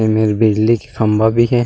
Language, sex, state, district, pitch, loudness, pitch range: Chhattisgarhi, male, Chhattisgarh, Rajnandgaon, 110 Hz, -14 LUFS, 110-115 Hz